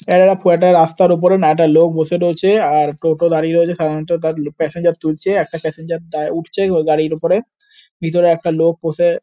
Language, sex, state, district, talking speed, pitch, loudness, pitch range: Bengali, male, West Bengal, North 24 Parganas, 195 wpm, 165 Hz, -15 LUFS, 160-175 Hz